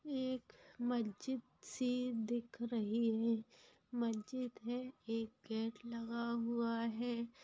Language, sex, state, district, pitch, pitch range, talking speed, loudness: Hindi, female, Bihar, Sitamarhi, 235 Hz, 230-250 Hz, 105 wpm, -41 LUFS